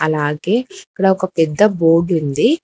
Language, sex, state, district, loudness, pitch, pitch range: Telugu, female, Telangana, Hyderabad, -16 LUFS, 170 Hz, 160-205 Hz